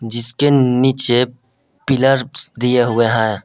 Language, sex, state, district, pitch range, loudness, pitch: Hindi, male, Jharkhand, Palamu, 120-135 Hz, -14 LUFS, 125 Hz